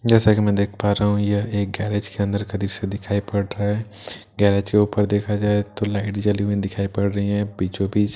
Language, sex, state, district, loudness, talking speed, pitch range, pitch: Hindi, male, Bihar, Katihar, -21 LUFS, 255 wpm, 100-105 Hz, 100 Hz